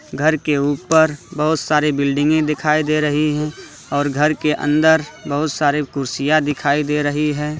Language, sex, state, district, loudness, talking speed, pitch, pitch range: Hindi, male, West Bengal, Purulia, -18 LUFS, 165 wpm, 150 Hz, 145-155 Hz